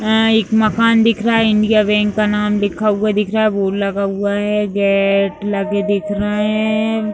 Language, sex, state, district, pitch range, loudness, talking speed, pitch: Hindi, female, Bihar, Madhepura, 205-215 Hz, -15 LUFS, 200 wpm, 210 Hz